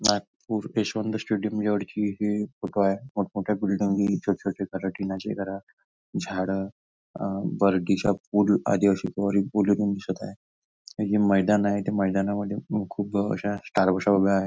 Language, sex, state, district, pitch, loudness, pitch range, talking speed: Marathi, male, Maharashtra, Nagpur, 100 Hz, -26 LUFS, 95-105 Hz, 135 wpm